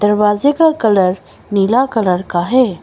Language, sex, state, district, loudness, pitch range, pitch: Hindi, female, Arunachal Pradesh, Longding, -14 LUFS, 190-255 Hz, 210 Hz